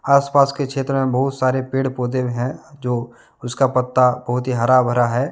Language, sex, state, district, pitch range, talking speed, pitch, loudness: Hindi, male, Jharkhand, Deoghar, 125-135 Hz, 190 wpm, 130 Hz, -19 LUFS